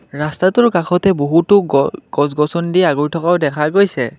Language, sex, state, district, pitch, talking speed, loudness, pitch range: Assamese, male, Assam, Kamrup Metropolitan, 170 Hz, 145 wpm, -15 LUFS, 150-185 Hz